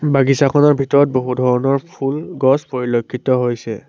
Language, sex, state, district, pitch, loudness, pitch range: Assamese, male, Assam, Sonitpur, 135 Hz, -16 LUFS, 125-140 Hz